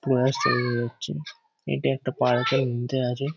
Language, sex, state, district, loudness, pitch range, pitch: Bengali, male, West Bengal, Kolkata, -25 LUFS, 120-130 Hz, 120 Hz